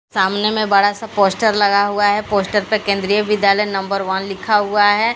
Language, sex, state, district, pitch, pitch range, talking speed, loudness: Hindi, female, Odisha, Sambalpur, 205 Hz, 200-210 Hz, 195 wpm, -16 LUFS